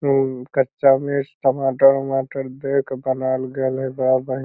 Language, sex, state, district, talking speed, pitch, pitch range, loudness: Magahi, male, Bihar, Lakhisarai, 160 wpm, 135 Hz, 130-135 Hz, -20 LUFS